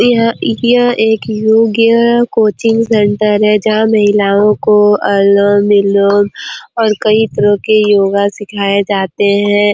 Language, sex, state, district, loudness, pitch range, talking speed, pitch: Hindi, female, Chhattisgarh, Korba, -11 LUFS, 205-220 Hz, 125 wpm, 210 Hz